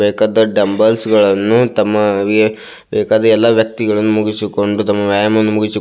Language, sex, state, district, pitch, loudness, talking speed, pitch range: Kannada, male, Karnataka, Belgaum, 110 Hz, -13 LUFS, 115 wpm, 105-110 Hz